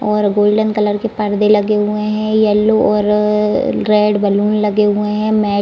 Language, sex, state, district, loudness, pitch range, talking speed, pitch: Hindi, female, Bihar, Saran, -14 LUFS, 210-215 Hz, 180 wpm, 210 Hz